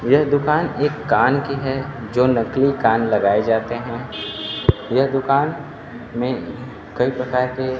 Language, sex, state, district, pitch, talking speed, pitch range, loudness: Hindi, male, Bihar, Kaimur, 125 Hz, 140 wpm, 120-140 Hz, -19 LUFS